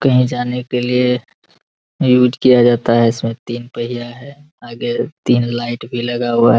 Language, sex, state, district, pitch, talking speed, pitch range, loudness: Hindi, male, Bihar, Araria, 120 Hz, 190 wpm, 120-125 Hz, -16 LUFS